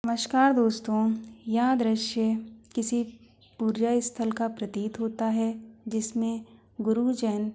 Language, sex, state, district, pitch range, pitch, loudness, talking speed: Hindi, female, Uttar Pradesh, Hamirpur, 220-235 Hz, 225 Hz, -27 LUFS, 125 wpm